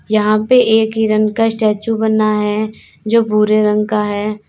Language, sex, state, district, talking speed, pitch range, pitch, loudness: Hindi, female, Uttar Pradesh, Lalitpur, 175 wpm, 210-220 Hz, 215 Hz, -14 LUFS